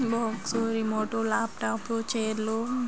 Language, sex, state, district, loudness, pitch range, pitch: Telugu, female, Andhra Pradesh, Srikakulam, -29 LUFS, 220-230 Hz, 225 Hz